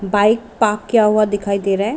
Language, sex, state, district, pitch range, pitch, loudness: Hindi, female, Jharkhand, Sahebganj, 200-215 Hz, 210 Hz, -16 LUFS